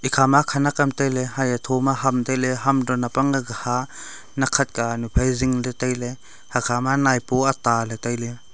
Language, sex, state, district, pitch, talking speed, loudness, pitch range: Wancho, male, Arunachal Pradesh, Longding, 130 Hz, 140 wpm, -21 LUFS, 120-135 Hz